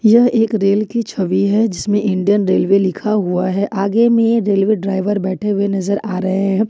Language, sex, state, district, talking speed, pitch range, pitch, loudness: Hindi, female, Jharkhand, Ranchi, 195 wpm, 195-215 Hz, 200 Hz, -16 LUFS